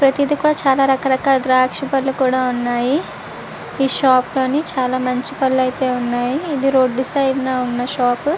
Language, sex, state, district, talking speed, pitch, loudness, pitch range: Telugu, female, Andhra Pradesh, Visakhapatnam, 115 wpm, 260 Hz, -17 LUFS, 255-275 Hz